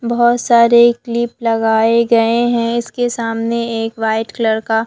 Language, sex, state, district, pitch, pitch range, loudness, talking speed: Hindi, female, Bihar, Katihar, 235 Hz, 225-235 Hz, -14 LUFS, 150 wpm